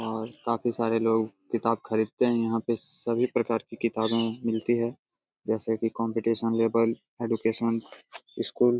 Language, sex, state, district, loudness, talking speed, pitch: Hindi, male, Jharkhand, Jamtara, -28 LUFS, 150 wpm, 115 Hz